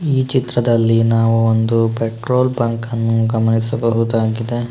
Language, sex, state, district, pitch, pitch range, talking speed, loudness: Kannada, male, Karnataka, Shimoga, 115 Hz, 115-120 Hz, 100 wpm, -16 LUFS